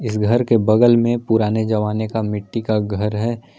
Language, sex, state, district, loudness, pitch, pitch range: Hindi, male, Jharkhand, Palamu, -18 LUFS, 110 Hz, 105-115 Hz